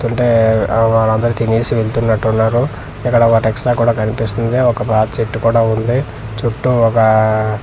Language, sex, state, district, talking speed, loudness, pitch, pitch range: Telugu, male, Andhra Pradesh, Manyam, 150 wpm, -14 LUFS, 115 Hz, 110-120 Hz